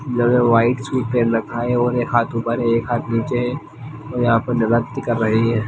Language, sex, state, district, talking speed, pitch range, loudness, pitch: Hindi, male, Bihar, Lakhisarai, 230 wpm, 115-125 Hz, -19 LUFS, 120 Hz